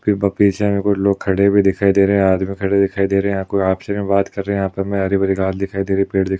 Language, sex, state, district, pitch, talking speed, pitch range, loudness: Hindi, male, Uttar Pradesh, Jalaun, 100 Hz, 300 wpm, 95-100 Hz, -17 LUFS